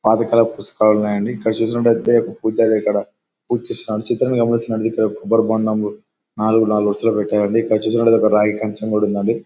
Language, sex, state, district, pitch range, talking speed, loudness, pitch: Telugu, male, Andhra Pradesh, Anantapur, 105-115 Hz, 150 wpm, -17 LUFS, 110 Hz